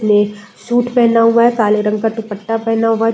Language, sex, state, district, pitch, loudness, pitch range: Hindi, female, Uttar Pradesh, Deoria, 225 Hz, -14 LUFS, 210-230 Hz